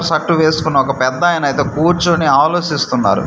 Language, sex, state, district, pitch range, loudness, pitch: Telugu, male, Andhra Pradesh, Manyam, 140-170 Hz, -14 LUFS, 155 Hz